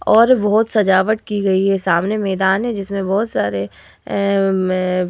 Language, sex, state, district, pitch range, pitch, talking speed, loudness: Hindi, female, Uttar Pradesh, Hamirpur, 185-210 Hz, 195 Hz, 175 wpm, -17 LUFS